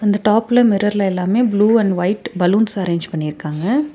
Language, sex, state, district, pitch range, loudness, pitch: Tamil, female, Tamil Nadu, Nilgiris, 180-220 Hz, -16 LUFS, 205 Hz